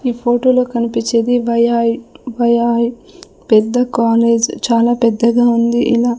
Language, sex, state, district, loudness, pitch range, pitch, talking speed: Telugu, female, Andhra Pradesh, Sri Satya Sai, -14 LUFS, 235-240 Hz, 235 Hz, 95 wpm